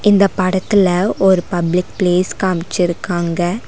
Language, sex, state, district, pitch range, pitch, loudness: Tamil, female, Tamil Nadu, Nilgiris, 175-190 Hz, 185 Hz, -16 LUFS